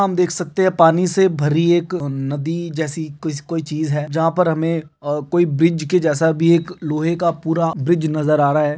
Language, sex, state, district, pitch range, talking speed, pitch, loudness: Hindi, male, Bihar, Darbhanga, 150-170 Hz, 210 wpm, 165 Hz, -18 LUFS